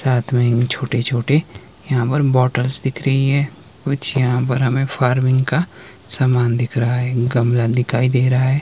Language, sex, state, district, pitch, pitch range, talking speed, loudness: Hindi, male, Himachal Pradesh, Shimla, 130 Hz, 125-135 Hz, 190 wpm, -18 LUFS